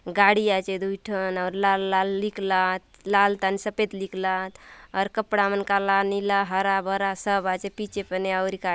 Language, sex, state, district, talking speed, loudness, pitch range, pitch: Halbi, female, Chhattisgarh, Bastar, 190 wpm, -24 LUFS, 190-200 Hz, 195 Hz